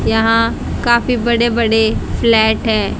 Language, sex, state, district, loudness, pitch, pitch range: Hindi, female, Haryana, Jhajjar, -14 LUFS, 230 Hz, 220-235 Hz